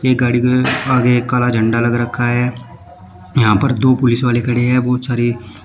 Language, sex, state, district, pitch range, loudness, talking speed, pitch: Hindi, male, Uttar Pradesh, Shamli, 120-125 Hz, -15 LUFS, 190 wpm, 120 Hz